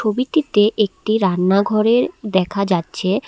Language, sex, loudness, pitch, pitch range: Bengali, female, -17 LUFS, 210 Hz, 190-220 Hz